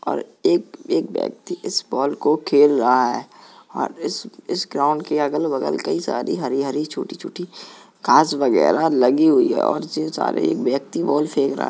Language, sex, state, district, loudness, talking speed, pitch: Hindi, female, Uttar Pradesh, Jalaun, -20 LUFS, 220 wpm, 150 Hz